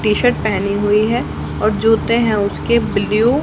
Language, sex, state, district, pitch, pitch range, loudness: Hindi, female, Haryana, Charkhi Dadri, 215 Hz, 205-235 Hz, -16 LUFS